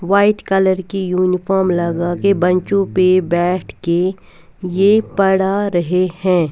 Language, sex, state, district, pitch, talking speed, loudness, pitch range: Hindi, female, Punjab, Fazilka, 185 Hz, 120 wpm, -16 LUFS, 180-195 Hz